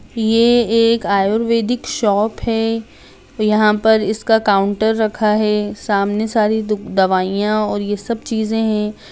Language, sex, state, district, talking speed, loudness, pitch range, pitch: Hindi, female, Bihar, Darbhanga, 130 wpm, -16 LUFS, 210-225 Hz, 215 Hz